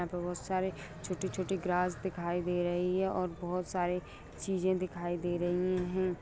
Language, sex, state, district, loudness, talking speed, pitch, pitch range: Hindi, female, Bihar, Jahanabad, -34 LUFS, 175 wpm, 180 Hz, 175-185 Hz